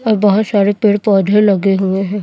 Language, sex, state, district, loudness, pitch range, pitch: Hindi, female, Chhattisgarh, Raipur, -13 LUFS, 195-210 Hz, 205 Hz